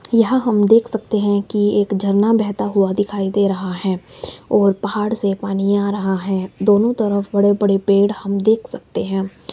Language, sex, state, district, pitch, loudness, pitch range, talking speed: Hindi, male, Himachal Pradesh, Shimla, 205 Hz, -17 LUFS, 195-210 Hz, 190 wpm